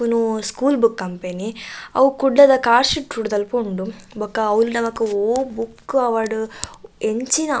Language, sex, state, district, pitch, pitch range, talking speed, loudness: Tulu, female, Karnataka, Dakshina Kannada, 230 Hz, 220-265 Hz, 140 wpm, -19 LUFS